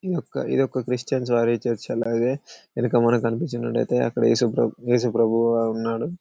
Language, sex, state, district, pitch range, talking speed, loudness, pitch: Telugu, male, Telangana, Karimnagar, 115-130 Hz, 155 wpm, -23 LUFS, 120 Hz